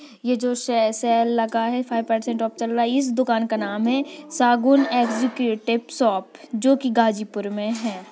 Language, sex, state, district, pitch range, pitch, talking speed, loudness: Hindi, female, Uttar Pradesh, Ghazipur, 225-250 Hz, 235 Hz, 175 wpm, -22 LUFS